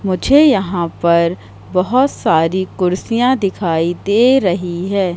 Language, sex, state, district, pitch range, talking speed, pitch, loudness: Hindi, female, Madhya Pradesh, Katni, 175-230 Hz, 115 wpm, 185 Hz, -15 LUFS